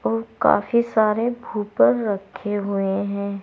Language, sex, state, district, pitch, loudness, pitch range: Hindi, female, Uttar Pradesh, Saharanpur, 205 Hz, -21 LUFS, 200-225 Hz